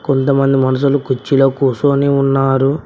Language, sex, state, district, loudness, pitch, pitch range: Telugu, male, Telangana, Mahabubabad, -14 LUFS, 135 Hz, 135-140 Hz